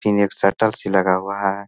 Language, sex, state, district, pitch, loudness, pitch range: Hindi, male, Bihar, Jahanabad, 100 Hz, -19 LUFS, 95-100 Hz